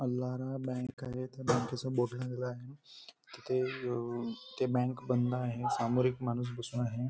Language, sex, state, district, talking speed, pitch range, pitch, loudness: Marathi, male, Maharashtra, Nagpur, 145 wpm, 120-130 Hz, 125 Hz, -35 LUFS